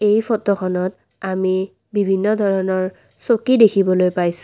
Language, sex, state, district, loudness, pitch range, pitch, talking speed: Assamese, female, Assam, Kamrup Metropolitan, -18 LUFS, 185-210 Hz, 195 Hz, 110 wpm